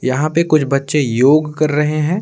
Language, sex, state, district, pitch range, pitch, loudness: Hindi, male, Bihar, Patna, 140-155 Hz, 150 Hz, -15 LUFS